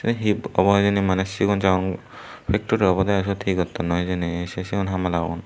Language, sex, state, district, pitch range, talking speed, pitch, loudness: Chakma, male, Tripura, Dhalai, 90-100 Hz, 175 wpm, 95 Hz, -22 LUFS